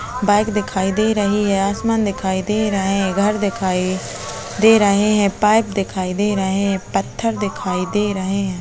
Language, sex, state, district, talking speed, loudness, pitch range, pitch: Hindi, female, Chhattisgarh, Kabirdham, 180 wpm, -18 LUFS, 190-210 Hz, 200 Hz